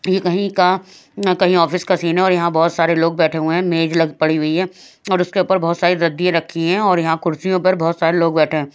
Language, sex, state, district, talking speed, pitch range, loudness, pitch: Hindi, female, Haryana, Rohtak, 265 wpm, 165-185 Hz, -16 LUFS, 170 Hz